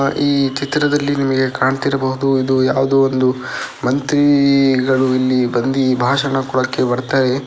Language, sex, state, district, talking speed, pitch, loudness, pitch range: Kannada, male, Karnataka, Dakshina Kannada, 120 wpm, 135 Hz, -16 LUFS, 130-140 Hz